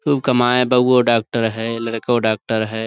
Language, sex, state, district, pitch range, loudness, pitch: Urdu, male, Uttar Pradesh, Budaun, 110-125 Hz, -17 LUFS, 115 Hz